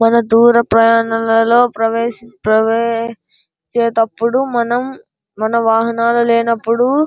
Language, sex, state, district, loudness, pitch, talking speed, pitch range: Telugu, male, Andhra Pradesh, Anantapur, -14 LUFS, 230 Hz, 85 wpm, 225-235 Hz